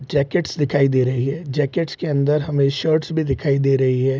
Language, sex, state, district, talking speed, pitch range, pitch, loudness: Hindi, male, Bihar, Sitamarhi, 215 wpm, 135-155 Hz, 140 Hz, -19 LUFS